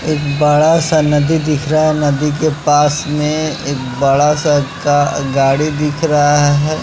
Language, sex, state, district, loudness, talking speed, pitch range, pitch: Hindi, male, Bihar, West Champaran, -13 LUFS, 165 wpm, 145-155 Hz, 150 Hz